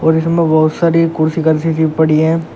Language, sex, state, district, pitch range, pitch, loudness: Hindi, male, Uttar Pradesh, Shamli, 160-165 Hz, 160 Hz, -13 LUFS